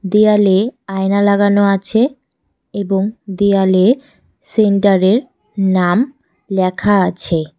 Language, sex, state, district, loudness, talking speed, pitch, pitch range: Bengali, female, West Bengal, Cooch Behar, -14 LUFS, 80 wpm, 200 Hz, 190-215 Hz